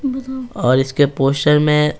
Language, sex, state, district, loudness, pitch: Hindi, male, Bihar, Patna, -16 LUFS, 150 Hz